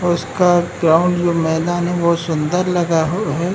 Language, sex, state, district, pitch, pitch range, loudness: Hindi, male, Uttar Pradesh, Hamirpur, 175 Hz, 165-175 Hz, -16 LUFS